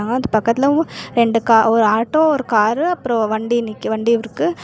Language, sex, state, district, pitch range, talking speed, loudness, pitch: Tamil, female, Karnataka, Bangalore, 220-260 Hz, 170 wpm, -16 LUFS, 230 Hz